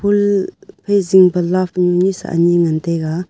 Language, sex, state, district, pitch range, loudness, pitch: Wancho, female, Arunachal Pradesh, Longding, 170-200 Hz, -15 LUFS, 185 Hz